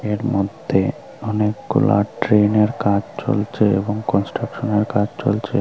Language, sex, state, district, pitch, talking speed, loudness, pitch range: Bengali, female, Tripura, Unakoti, 105 Hz, 105 wpm, -19 LUFS, 105-110 Hz